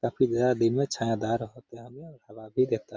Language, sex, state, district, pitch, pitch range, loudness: Hindi, male, Bihar, Gaya, 120 Hz, 115-130 Hz, -27 LUFS